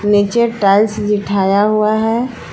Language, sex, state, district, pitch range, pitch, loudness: Hindi, female, Jharkhand, Palamu, 205-220 Hz, 210 Hz, -14 LUFS